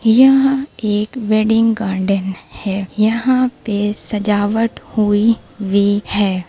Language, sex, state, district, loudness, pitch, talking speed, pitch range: Hindi, female, Bihar, Begusarai, -16 LUFS, 210 Hz, 95 wpm, 200-225 Hz